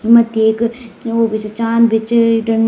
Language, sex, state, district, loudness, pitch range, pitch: Garhwali, male, Uttarakhand, Tehri Garhwal, -14 LUFS, 225-230 Hz, 230 Hz